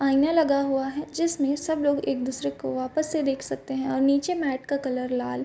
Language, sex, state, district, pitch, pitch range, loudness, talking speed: Hindi, female, Uttar Pradesh, Varanasi, 275 Hz, 260-295 Hz, -26 LUFS, 230 wpm